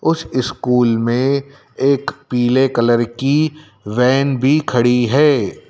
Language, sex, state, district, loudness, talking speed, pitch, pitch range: Hindi, male, Madhya Pradesh, Dhar, -16 LUFS, 115 wpm, 130 Hz, 120-140 Hz